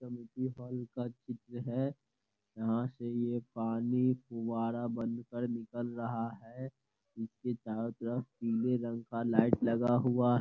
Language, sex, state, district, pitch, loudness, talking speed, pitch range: Hindi, male, Bihar, Gopalganj, 120 Hz, -35 LUFS, 140 wpm, 115-125 Hz